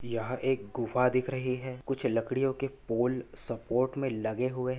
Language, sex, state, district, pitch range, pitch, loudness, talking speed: Hindi, male, Maharashtra, Nagpur, 120-130 Hz, 125 Hz, -31 LUFS, 175 wpm